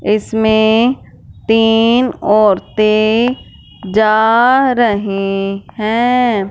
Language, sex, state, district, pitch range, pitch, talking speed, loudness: Hindi, female, Punjab, Fazilka, 210-235 Hz, 220 Hz, 55 wpm, -13 LUFS